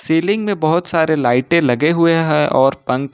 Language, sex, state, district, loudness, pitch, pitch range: Hindi, male, Uttar Pradesh, Lucknow, -15 LUFS, 160 Hz, 140-170 Hz